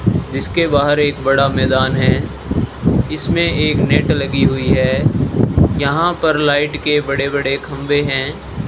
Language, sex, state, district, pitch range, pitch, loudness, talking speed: Hindi, male, Rajasthan, Bikaner, 135-150 Hz, 145 Hz, -15 LUFS, 140 wpm